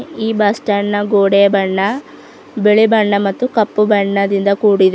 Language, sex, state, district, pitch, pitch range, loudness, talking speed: Kannada, female, Karnataka, Bidar, 205 Hz, 200-215 Hz, -14 LUFS, 145 wpm